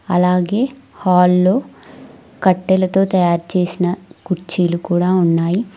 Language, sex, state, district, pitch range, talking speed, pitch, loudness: Telugu, female, Telangana, Mahabubabad, 175-190 Hz, 85 wpm, 180 Hz, -16 LUFS